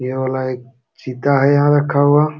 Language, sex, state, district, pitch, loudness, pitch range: Hindi, male, Uttar Pradesh, Jalaun, 135 Hz, -16 LUFS, 130-145 Hz